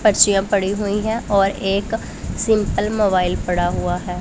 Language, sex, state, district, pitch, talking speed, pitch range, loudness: Hindi, female, Punjab, Pathankot, 200 Hz, 155 wpm, 185-215 Hz, -19 LUFS